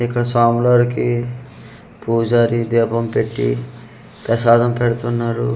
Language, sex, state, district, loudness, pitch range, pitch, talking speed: Telugu, male, Andhra Pradesh, Manyam, -17 LUFS, 115-120 Hz, 120 Hz, 75 wpm